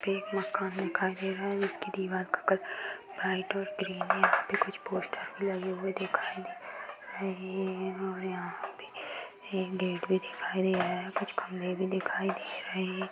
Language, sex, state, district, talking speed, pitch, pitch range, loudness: Hindi, female, Uttar Pradesh, Jalaun, 200 wpm, 190 Hz, 185-195 Hz, -33 LUFS